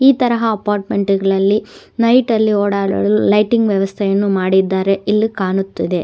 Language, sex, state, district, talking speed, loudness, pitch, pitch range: Kannada, female, Karnataka, Dakshina Kannada, 120 wpm, -15 LUFS, 200 Hz, 195-220 Hz